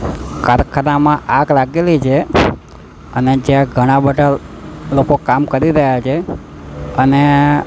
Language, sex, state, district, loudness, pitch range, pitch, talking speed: Gujarati, male, Gujarat, Gandhinagar, -13 LUFS, 130-145 Hz, 140 Hz, 110 wpm